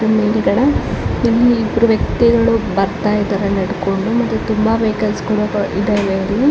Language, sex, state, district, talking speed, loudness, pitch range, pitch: Kannada, female, Karnataka, Chamarajanagar, 130 wpm, -16 LUFS, 200-225 Hz, 215 Hz